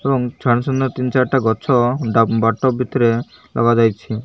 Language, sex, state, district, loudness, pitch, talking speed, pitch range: Odia, male, Odisha, Malkangiri, -17 LUFS, 120 Hz, 125 wpm, 115-130 Hz